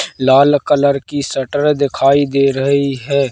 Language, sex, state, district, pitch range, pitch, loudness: Hindi, male, Madhya Pradesh, Katni, 135-145 Hz, 140 Hz, -14 LUFS